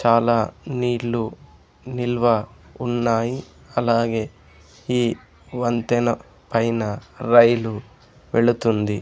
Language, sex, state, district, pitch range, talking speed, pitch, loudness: Telugu, male, Andhra Pradesh, Sri Satya Sai, 110-120 Hz, 65 wpm, 115 Hz, -21 LUFS